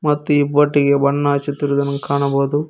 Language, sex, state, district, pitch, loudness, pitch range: Kannada, male, Karnataka, Koppal, 145 Hz, -17 LUFS, 140-145 Hz